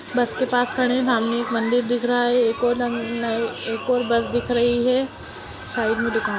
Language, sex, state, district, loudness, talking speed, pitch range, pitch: Hindi, female, Bihar, Muzaffarpur, -21 LUFS, 215 wpm, 230-245 Hz, 240 Hz